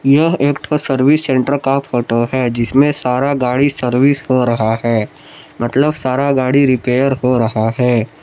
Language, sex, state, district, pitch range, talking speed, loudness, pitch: Hindi, male, Jharkhand, Palamu, 125-140 Hz, 160 wpm, -14 LUFS, 130 Hz